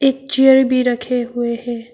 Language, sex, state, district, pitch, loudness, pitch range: Hindi, female, Arunachal Pradesh, Papum Pare, 250 Hz, -16 LUFS, 240-265 Hz